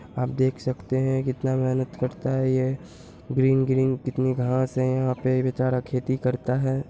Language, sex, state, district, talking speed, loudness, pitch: Hindi, male, Bihar, Purnia, 185 wpm, -25 LUFS, 130 Hz